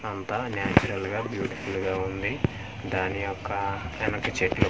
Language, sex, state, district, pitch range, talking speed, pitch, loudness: Telugu, male, Andhra Pradesh, Manyam, 95-110 Hz, 130 wpm, 100 Hz, -28 LUFS